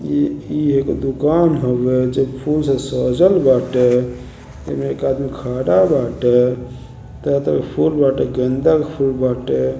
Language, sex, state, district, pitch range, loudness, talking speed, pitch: Bhojpuri, male, Uttar Pradesh, Gorakhpur, 125-135 Hz, -17 LUFS, 140 wpm, 125 Hz